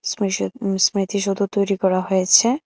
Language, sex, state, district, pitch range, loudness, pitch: Bengali, female, Tripura, West Tripura, 190-200 Hz, -19 LUFS, 195 Hz